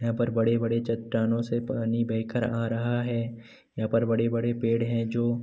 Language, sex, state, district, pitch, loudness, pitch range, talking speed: Hindi, male, Bihar, Gopalganj, 115 Hz, -27 LUFS, 115-120 Hz, 200 wpm